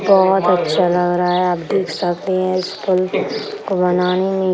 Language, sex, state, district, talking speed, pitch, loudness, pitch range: Hindi, male, Bihar, Sitamarhi, 210 wpm, 185 Hz, -17 LUFS, 180-190 Hz